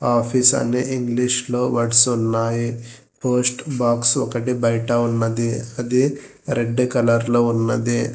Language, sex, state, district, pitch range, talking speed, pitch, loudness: Telugu, male, Telangana, Hyderabad, 115-125 Hz, 110 wpm, 120 Hz, -19 LUFS